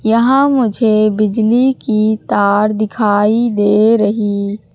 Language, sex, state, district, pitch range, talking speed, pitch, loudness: Hindi, female, Madhya Pradesh, Katni, 210-230 Hz, 100 wpm, 215 Hz, -13 LUFS